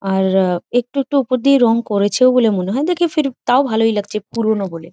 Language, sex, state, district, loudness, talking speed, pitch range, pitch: Bengali, female, West Bengal, Jhargram, -16 LUFS, 230 wpm, 195-265 Hz, 230 Hz